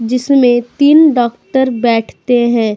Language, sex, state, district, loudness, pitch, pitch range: Hindi, female, Uttar Pradesh, Budaun, -11 LUFS, 245 Hz, 235-265 Hz